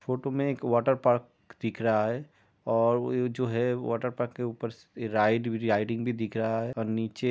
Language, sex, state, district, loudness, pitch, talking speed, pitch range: Hindi, male, Uttar Pradesh, Jyotiba Phule Nagar, -29 LUFS, 115 Hz, 195 wpm, 115-125 Hz